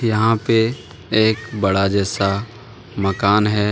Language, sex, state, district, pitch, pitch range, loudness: Hindi, male, Jharkhand, Deoghar, 105 Hz, 100-115 Hz, -18 LUFS